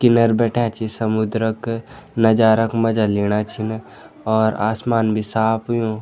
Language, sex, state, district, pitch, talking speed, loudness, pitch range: Garhwali, male, Uttarakhand, Tehri Garhwal, 110 Hz, 150 wpm, -19 LUFS, 110-115 Hz